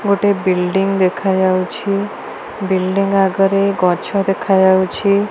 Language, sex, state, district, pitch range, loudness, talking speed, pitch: Odia, female, Odisha, Malkangiri, 185-200 Hz, -15 LUFS, 100 wpm, 195 Hz